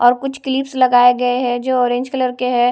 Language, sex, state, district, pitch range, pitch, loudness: Hindi, female, Odisha, Malkangiri, 245-260 Hz, 250 Hz, -16 LUFS